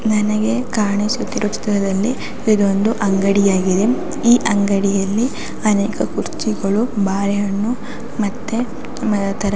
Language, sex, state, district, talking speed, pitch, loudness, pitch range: Kannada, female, Karnataka, Raichur, 80 wpm, 210 Hz, -18 LUFS, 200-235 Hz